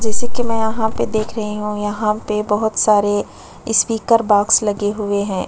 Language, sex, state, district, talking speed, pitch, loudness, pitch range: Hindi, female, Uttar Pradesh, Budaun, 185 wpm, 210 Hz, -17 LUFS, 210-225 Hz